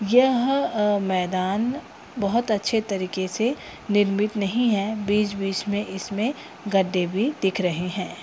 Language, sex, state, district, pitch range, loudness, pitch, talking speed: Hindi, female, Bihar, Purnia, 190-225 Hz, -24 LUFS, 205 Hz, 125 wpm